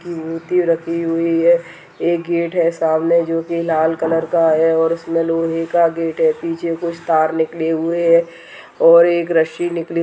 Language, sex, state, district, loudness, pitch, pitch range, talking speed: Hindi, female, Uttarakhand, Tehri Garhwal, -17 LUFS, 165 Hz, 165-170 Hz, 180 wpm